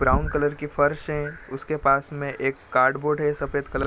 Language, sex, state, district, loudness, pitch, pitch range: Hindi, male, Bihar, Gopalganj, -24 LUFS, 140 Hz, 135-150 Hz